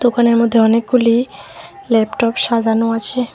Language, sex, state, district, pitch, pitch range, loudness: Bengali, female, West Bengal, Alipurduar, 235 Hz, 225-245 Hz, -14 LUFS